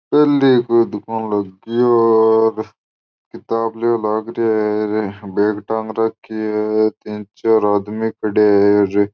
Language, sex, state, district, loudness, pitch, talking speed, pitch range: Marwari, male, Rajasthan, Churu, -17 LUFS, 110 Hz, 100 wpm, 105-115 Hz